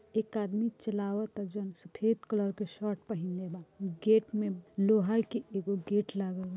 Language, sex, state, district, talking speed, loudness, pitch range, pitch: Bhojpuri, female, Bihar, Gopalganj, 165 wpm, -33 LUFS, 195-215 Hz, 205 Hz